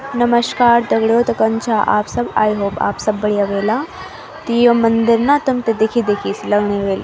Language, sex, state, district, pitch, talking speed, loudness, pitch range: Garhwali, female, Uttarakhand, Tehri Garhwal, 225 Hz, 195 wpm, -16 LUFS, 205-240 Hz